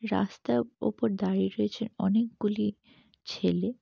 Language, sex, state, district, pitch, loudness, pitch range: Bengali, female, West Bengal, Jalpaiguri, 215 Hz, -29 LUFS, 200-225 Hz